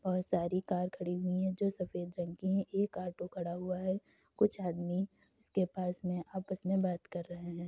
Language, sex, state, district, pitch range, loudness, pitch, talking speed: Hindi, female, Uttar Pradesh, Jalaun, 175-190 Hz, -36 LUFS, 180 Hz, 210 wpm